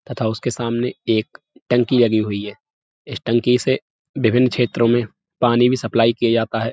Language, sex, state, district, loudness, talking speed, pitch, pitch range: Hindi, male, Uttar Pradesh, Budaun, -19 LUFS, 180 wpm, 120 Hz, 115-125 Hz